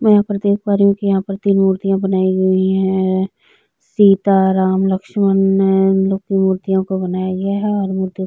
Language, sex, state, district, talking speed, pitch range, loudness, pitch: Hindi, female, Chhattisgarh, Jashpur, 195 wpm, 190-200 Hz, -15 LUFS, 195 Hz